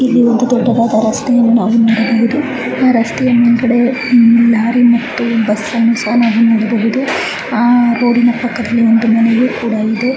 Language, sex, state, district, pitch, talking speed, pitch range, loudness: Kannada, female, Karnataka, Chamarajanagar, 235 Hz, 130 wpm, 230-245 Hz, -12 LUFS